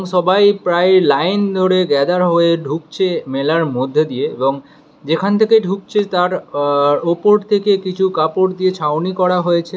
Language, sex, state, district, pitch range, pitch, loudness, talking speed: Bengali, male, West Bengal, Alipurduar, 155-190 Hz, 180 Hz, -15 LUFS, 145 wpm